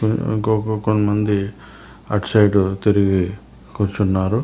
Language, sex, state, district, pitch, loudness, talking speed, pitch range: Telugu, male, Telangana, Hyderabad, 105 Hz, -19 LUFS, 80 wpm, 100-110 Hz